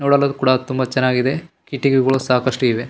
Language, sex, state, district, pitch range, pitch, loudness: Kannada, male, Karnataka, Bellary, 130-140 Hz, 130 Hz, -18 LUFS